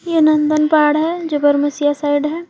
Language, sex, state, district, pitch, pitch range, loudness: Hindi, female, Jharkhand, Deoghar, 305 Hz, 290-315 Hz, -15 LUFS